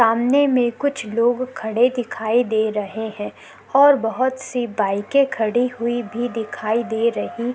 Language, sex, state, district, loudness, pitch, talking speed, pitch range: Hindi, female, Chhattisgarh, Korba, -20 LUFS, 235 Hz, 150 wpm, 220-250 Hz